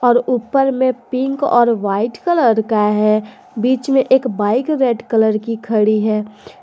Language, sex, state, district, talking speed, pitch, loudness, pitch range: Hindi, female, Jharkhand, Garhwa, 165 wpm, 235 Hz, -16 LUFS, 215-260 Hz